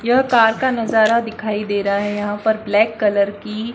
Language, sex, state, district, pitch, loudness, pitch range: Hindi, female, Maharashtra, Washim, 220 Hz, -17 LUFS, 205-230 Hz